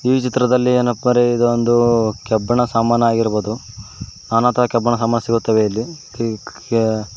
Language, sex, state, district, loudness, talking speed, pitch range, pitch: Kannada, male, Karnataka, Koppal, -17 LUFS, 110 wpm, 110-120 Hz, 115 Hz